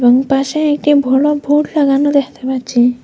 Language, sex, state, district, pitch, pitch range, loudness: Bengali, female, Assam, Hailakandi, 275 Hz, 260-295 Hz, -13 LUFS